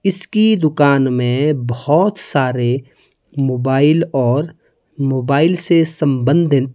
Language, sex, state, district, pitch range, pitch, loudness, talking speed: Hindi, male, Himachal Pradesh, Shimla, 130-165 Hz, 145 Hz, -15 LUFS, 90 wpm